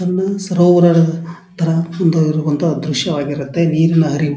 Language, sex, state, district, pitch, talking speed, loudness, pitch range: Kannada, male, Karnataka, Dharwad, 165 Hz, 95 wpm, -15 LUFS, 155-175 Hz